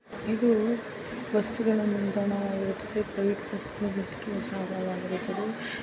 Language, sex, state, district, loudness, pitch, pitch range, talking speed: Kannada, female, Karnataka, Raichur, -29 LUFS, 210 Hz, 200-220 Hz, 80 wpm